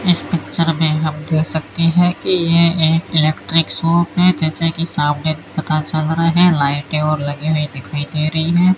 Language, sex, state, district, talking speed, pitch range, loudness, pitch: Hindi, male, Rajasthan, Bikaner, 190 wpm, 155-170 Hz, -16 LUFS, 160 Hz